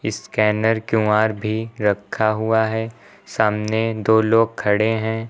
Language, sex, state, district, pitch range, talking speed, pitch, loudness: Hindi, male, Uttar Pradesh, Lucknow, 105-110 Hz, 125 wpm, 110 Hz, -19 LUFS